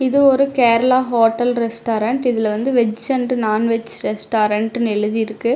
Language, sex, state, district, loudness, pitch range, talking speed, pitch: Tamil, female, Tamil Nadu, Namakkal, -17 LUFS, 220-250 Hz, 140 wpm, 230 Hz